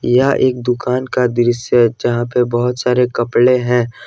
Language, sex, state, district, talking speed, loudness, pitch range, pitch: Hindi, male, Jharkhand, Ranchi, 175 wpm, -15 LUFS, 120-125 Hz, 125 Hz